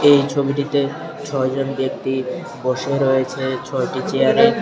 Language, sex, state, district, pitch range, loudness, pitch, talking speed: Bengali, male, Tripura, Unakoti, 130-145 Hz, -20 LUFS, 140 Hz, 115 wpm